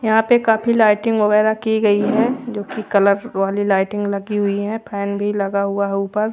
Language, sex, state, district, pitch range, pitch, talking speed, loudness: Hindi, female, Haryana, Rohtak, 200-220 Hz, 210 Hz, 210 wpm, -18 LUFS